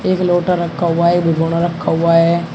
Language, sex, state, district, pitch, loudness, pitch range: Hindi, male, Uttar Pradesh, Shamli, 170 Hz, -15 LUFS, 165-175 Hz